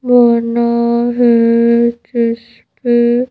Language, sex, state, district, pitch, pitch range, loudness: Hindi, female, Madhya Pradesh, Bhopal, 235 Hz, 235-240 Hz, -12 LUFS